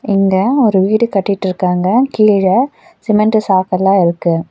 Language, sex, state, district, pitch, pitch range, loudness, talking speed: Tamil, female, Tamil Nadu, Nilgiris, 195 Hz, 185-220 Hz, -13 LUFS, 105 wpm